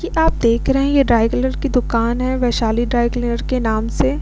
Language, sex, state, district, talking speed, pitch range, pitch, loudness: Hindi, female, Bihar, Vaishali, 240 wpm, 230-260 Hz, 240 Hz, -17 LUFS